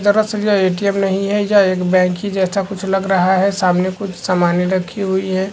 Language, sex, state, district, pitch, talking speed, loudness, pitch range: Hindi, male, Bihar, Supaul, 190 Hz, 215 wpm, -16 LUFS, 185-200 Hz